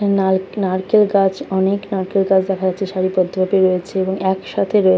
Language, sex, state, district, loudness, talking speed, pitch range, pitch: Bengali, female, West Bengal, Kolkata, -17 LUFS, 180 wpm, 185-195 Hz, 190 Hz